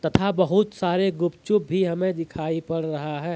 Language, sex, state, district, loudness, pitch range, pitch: Hindi, male, Jharkhand, Deoghar, -24 LUFS, 160-190 Hz, 175 Hz